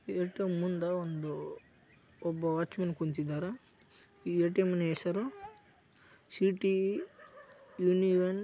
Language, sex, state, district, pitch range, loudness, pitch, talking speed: Kannada, male, Karnataka, Raichur, 170-200 Hz, -33 LUFS, 180 Hz, 85 wpm